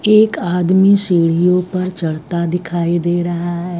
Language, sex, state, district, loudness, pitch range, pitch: Hindi, female, Bihar, Kaimur, -15 LUFS, 170-185 Hz, 175 Hz